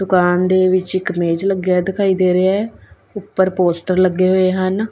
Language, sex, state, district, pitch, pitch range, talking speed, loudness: Punjabi, female, Punjab, Kapurthala, 185 Hz, 185-190 Hz, 185 wpm, -16 LUFS